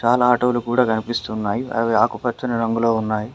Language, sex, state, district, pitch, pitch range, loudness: Telugu, male, Telangana, Mahabubabad, 115 Hz, 110-120 Hz, -20 LUFS